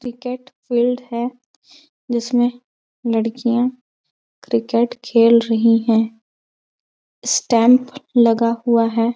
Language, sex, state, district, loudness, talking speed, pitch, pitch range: Hindi, female, Chhattisgarh, Balrampur, -18 LUFS, 85 wpm, 240 Hz, 230-250 Hz